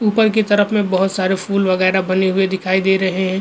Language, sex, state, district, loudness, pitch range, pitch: Hindi, male, Goa, North and South Goa, -16 LUFS, 190-205 Hz, 190 Hz